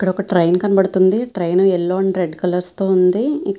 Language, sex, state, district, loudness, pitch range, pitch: Telugu, female, Andhra Pradesh, Visakhapatnam, -16 LUFS, 180-195 Hz, 190 Hz